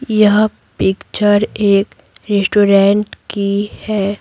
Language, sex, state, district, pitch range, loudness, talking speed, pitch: Hindi, female, Bihar, Patna, 200-210 Hz, -14 LUFS, 85 wpm, 205 Hz